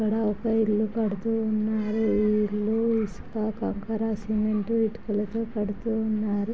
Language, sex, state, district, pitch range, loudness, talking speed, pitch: Telugu, female, Andhra Pradesh, Chittoor, 210-225 Hz, -26 LUFS, 120 wpm, 215 Hz